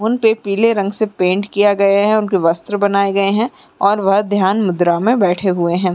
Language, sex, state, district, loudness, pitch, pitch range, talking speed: Hindi, female, Uttarakhand, Uttarkashi, -15 LUFS, 200 Hz, 190-215 Hz, 210 wpm